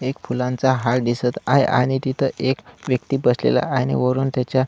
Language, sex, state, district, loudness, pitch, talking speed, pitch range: Marathi, male, Maharashtra, Solapur, -20 LUFS, 130 Hz, 180 wpm, 125-135 Hz